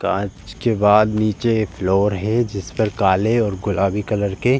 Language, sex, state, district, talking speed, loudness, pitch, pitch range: Hindi, male, Uttar Pradesh, Jalaun, 185 wpm, -19 LUFS, 105 Hz, 100-110 Hz